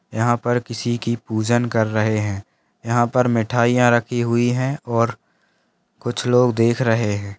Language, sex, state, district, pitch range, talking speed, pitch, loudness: Hindi, male, Bihar, Bhagalpur, 115-120 Hz, 160 wpm, 120 Hz, -19 LUFS